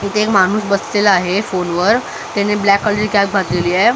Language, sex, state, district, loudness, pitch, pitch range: Marathi, male, Maharashtra, Mumbai Suburban, -15 LUFS, 200 Hz, 190-210 Hz